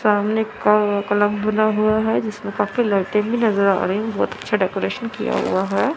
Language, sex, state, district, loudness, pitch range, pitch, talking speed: Hindi, female, Chandigarh, Chandigarh, -20 LUFS, 205-220 Hz, 210 Hz, 200 wpm